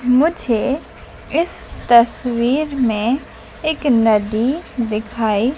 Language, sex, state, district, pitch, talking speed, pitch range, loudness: Hindi, female, Madhya Pradesh, Dhar, 245 Hz, 75 wpm, 225-280 Hz, -18 LUFS